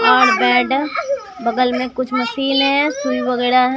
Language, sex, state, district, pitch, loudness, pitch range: Hindi, male, Bihar, Katihar, 260 Hz, -16 LUFS, 250-275 Hz